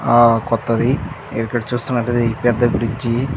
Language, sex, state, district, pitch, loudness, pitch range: Telugu, male, Andhra Pradesh, Chittoor, 120 Hz, -18 LUFS, 115-125 Hz